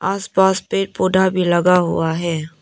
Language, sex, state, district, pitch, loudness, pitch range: Hindi, female, Arunachal Pradesh, Papum Pare, 180 Hz, -17 LUFS, 170-190 Hz